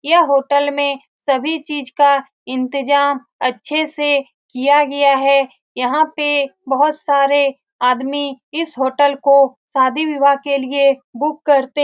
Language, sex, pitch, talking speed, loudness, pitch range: Hindi, female, 280 Hz, 135 wpm, -16 LUFS, 270-290 Hz